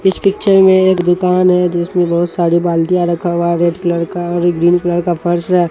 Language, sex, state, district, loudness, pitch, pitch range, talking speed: Hindi, male, Bihar, Katihar, -13 LUFS, 175 Hz, 170-180 Hz, 240 wpm